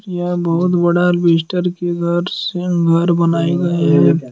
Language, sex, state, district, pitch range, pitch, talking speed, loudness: Hindi, male, Jharkhand, Deoghar, 170-175 Hz, 175 Hz, 110 wpm, -15 LUFS